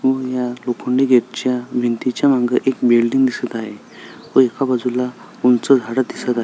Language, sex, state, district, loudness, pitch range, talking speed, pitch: Marathi, male, Maharashtra, Sindhudurg, -18 LUFS, 120-130 Hz, 160 wpm, 125 Hz